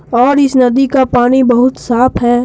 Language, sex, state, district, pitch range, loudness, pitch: Hindi, male, Jharkhand, Deoghar, 245-265 Hz, -10 LUFS, 255 Hz